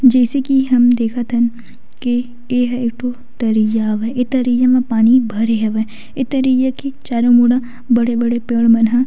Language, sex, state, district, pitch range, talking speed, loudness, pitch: Chhattisgarhi, female, Chhattisgarh, Sukma, 230-250 Hz, 180 wpm, -15 LUFS, 245 Hz